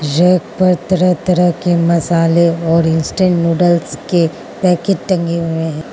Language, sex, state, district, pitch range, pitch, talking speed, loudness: Hindi, female, Mizoram, Aizawl, 165-180 Hz, 170 Hz, 140 wpm, -14 LUFS